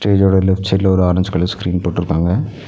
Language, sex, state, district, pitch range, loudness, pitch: Tamil, male, Tamil Nadu, Nilgiris, 90-95 Hz, -15 LUFS, 95 Hz